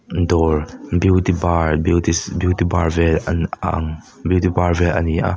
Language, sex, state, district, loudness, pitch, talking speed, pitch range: Mizo, male, Mizoram, Aizawl, -18 LUFS, 85 Hz, 170 wpm, 80-90 Hz